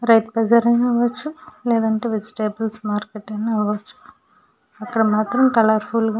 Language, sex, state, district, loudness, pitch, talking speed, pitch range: Telugu, female, Andhra Pradesh, Srikakulam, -19 LUFS, 225 Hz, 125 wpm, 215-235 Hz